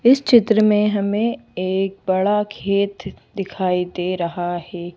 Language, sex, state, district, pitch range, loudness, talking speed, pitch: Hindi, female, Madhya Pradesh, Bhopal, 180-210 Hz, -19 LUFS, 135 wpm, 195 Hz